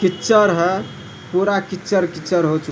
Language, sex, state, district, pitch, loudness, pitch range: Hindi, male, Bihar, Supaul, 185 Hz, -18 LUFS, 175-195 Hz